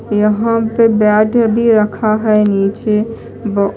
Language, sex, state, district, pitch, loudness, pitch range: Hindi, female, Odisha, Malkangiri, 215 Hz, -13 LUFS, 210-225 Hz